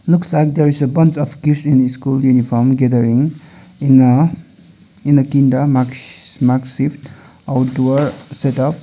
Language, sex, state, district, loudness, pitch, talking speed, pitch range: English, male, Sikkim, Gangtok, -15 LUFS, 140 Hz, 165 wpm, 130-150 Hz